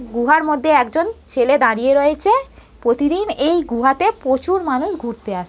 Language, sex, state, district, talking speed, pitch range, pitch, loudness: Bengali, female, West Bengal, North 24 Parganas, 155 wpm, 245-370 Hz, 295 Hz, -17 LUFS